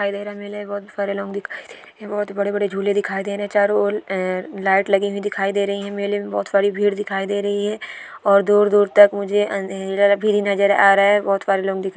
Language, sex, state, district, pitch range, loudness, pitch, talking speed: Hindi, female, West Bengal, Paschim Medinipur, 200-205 Hz, -19 LUFS, 200 Hz, 245 wpm